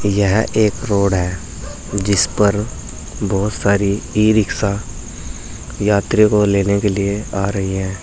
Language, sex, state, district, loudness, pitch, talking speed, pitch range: Hindi, male, Uttar Pradesh, Saharanpur, -17 LUFS, 100 Hz, 135 wpm, 95-105 Hz